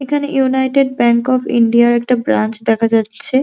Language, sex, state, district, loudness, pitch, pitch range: Bengali, male, West Bengal, Jhargram, -14 LUFS, 240 Hz, 230-265 Hz